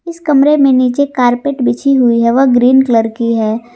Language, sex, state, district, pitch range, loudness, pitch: Hindi, female, Jharkhand, Garhwa, 235-280 Hz, -11 LUFS, 250 Hz